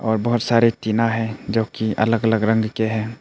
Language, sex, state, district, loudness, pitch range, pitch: Hindi, male, Arunachal Pradesh, Papum Pare, -20 LUFS, 110-115 Hz, 110 Hz